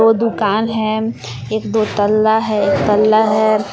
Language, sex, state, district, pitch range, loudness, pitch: Hindi, female, Jharkhand, Palamu, 210-220 Hz, -15 LUFS, 215 Hz